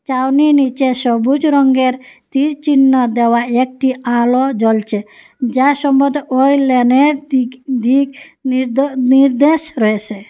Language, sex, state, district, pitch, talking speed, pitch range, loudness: Bengali, female, Assam, Hailakandi, 260 Hz, 100 wpm, 250-275 Hz, -13 LUFS